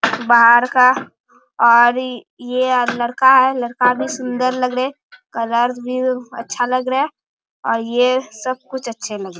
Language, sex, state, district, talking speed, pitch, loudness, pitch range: Hindi, male, Bihar, Bhagalpur, 180 wpm, 250 Hz, -16 LUFS, 235-255 Hz